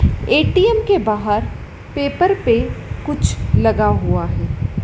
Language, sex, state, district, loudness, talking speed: Hindi, female, Madhya Pradesh, Dhar, -17 LUFS, 110 wpm